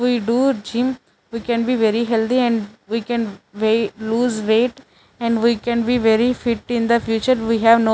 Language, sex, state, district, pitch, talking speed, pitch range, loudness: English, female, Chandigarh, Chandigarh, 230 Hz, 190 wpm, 225-240 Hz, -19 LUFS